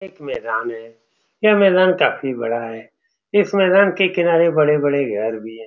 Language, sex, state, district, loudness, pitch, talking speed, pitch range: Hindi, male, Bihar, Saran, -17 LUFS, 150 Hz, 170 wpm, 115-190 Hz